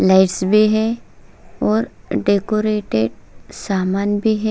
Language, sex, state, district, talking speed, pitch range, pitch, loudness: Marathi, female, Maharashtra, Solapur, 105 wpm, 185-215 Hz, 205 Hz, -18 LUFS